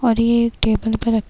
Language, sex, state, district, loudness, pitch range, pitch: Hindi, female, Uttar Pradesh, Jyotiba Phule Nagar, -18 LUFS, 225-235 Hz, 225 Hz